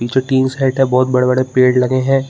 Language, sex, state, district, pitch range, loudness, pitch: Hindi, male, Chhattisgarh, Bilaspur, 125-130 Hz, -14 LUFS, 130 Hz